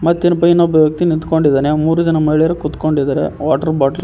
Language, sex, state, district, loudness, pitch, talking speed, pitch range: Kannada, male, Karnataka, Koppal, -14 LUFS, 160 Hz, 150 wpm, 150-170 Hz